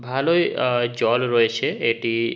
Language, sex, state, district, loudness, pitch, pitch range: Bengali, male, West Bengal, Jhargram, -21 LUFS, 120 Hz, 115-125 Hz